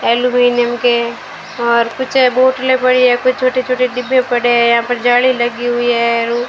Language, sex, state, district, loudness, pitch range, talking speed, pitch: Hindi, female, Rajasthan, Bikaner, -13 LUFS, 240-255 Hz, 175 wpm, 245 Hz